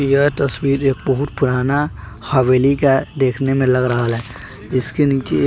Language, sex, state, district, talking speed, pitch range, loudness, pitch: Hindi, male, Bihar, West Champaran, 155 wpm, 125-140 Hz, -17 LUFS, 135 Hz